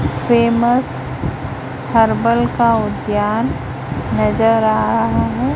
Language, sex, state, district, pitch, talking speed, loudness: Hindi, female, Chhattisgarh, Raipur, 210 Hz, 85 wpm, -16 LUFS